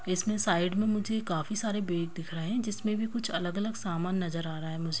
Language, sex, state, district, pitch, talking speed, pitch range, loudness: Hindi, female, Bihar, Kishanganj, 185 Hz, 250 wpm, 170-215 Hz, -31 LUFS